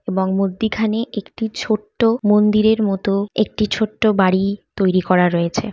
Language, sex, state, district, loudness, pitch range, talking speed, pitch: Bengali, female, West Bengal, Jalpaiguri, -18 LUFS, 195-220 Hz, 125 wpm, 210 Hz